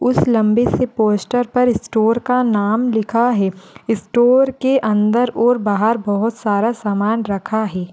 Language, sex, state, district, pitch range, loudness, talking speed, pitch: Hindi, female, Rajasthan, Churu, 205-245 Hz, -16 LUFS, 150 wpm, 225 Hz